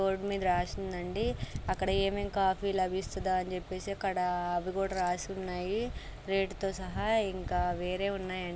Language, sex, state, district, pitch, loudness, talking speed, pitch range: Telugu, female, Andhra Pradesh, Guntur, 190 Hz, -33 LUFS, 135 wpm, 180-195 Hz